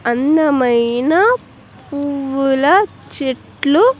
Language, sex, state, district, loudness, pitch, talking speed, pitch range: Telugu, female, Andhra Pradesh, Sri Satya Sai, -15 LUFS, 280 Hz, 45 wpm, 260-315 Hz